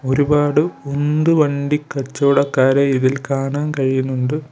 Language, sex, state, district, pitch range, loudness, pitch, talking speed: Malayalam, male, Kerala, Kollam, 135-150 Hz, -17 LUFS, 140 Hz, 95 wpm